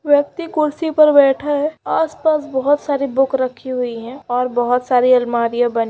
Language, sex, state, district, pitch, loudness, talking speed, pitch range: Hindi, female, West Bengal, Purulia, 270 Hz, -17 LUFS, 185 wpm, 245-295 Hz